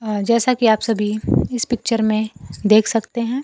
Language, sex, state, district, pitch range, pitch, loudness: Hindi, female, Bihar, Kaimur, 215-235 Hz, 225 Hz, -18 LUFS